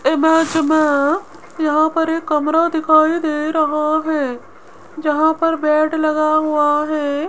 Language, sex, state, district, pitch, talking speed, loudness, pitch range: Hindi, female, Rajasthan, Jaipur, 310 Hz, 130 wpm, -16 LUFS, 300-320 Hz